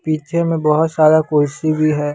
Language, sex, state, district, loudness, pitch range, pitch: Hindi, male, Bihar, West Champaran, -15 LUFS, 150-160 Hz, 155 Hz